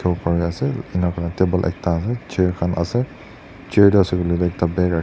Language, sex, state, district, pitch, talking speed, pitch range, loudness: Nagamese, male, Nagaland, Dimapur, 90 Hz, 180 wpm, 85-95 Hz, -20 LUFS